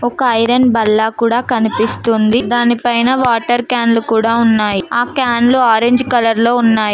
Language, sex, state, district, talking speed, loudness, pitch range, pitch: Telugu, female, Telangana, Mahabubabad, 145 wpm, -13 LUFS, 225-245 Hz, 235 Hz